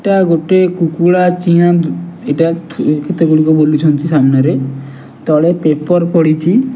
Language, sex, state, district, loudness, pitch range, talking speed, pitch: Odia, male, Odisha, Nuapada, -12 LUFS, 150-175 Hz, 95 wpm, 165 Hz